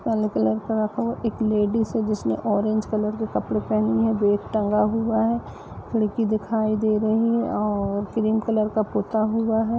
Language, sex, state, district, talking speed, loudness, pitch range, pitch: Hindi, female, Uttar Pradesh, Budaun, 185 wpm, -23 LUFS, 210-225 Hz, 215 Hz